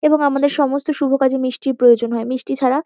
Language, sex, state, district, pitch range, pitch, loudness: Bengali, female, West Bengal, Kolkata, 255-285 Hz, 270 Hz, -17 LUFS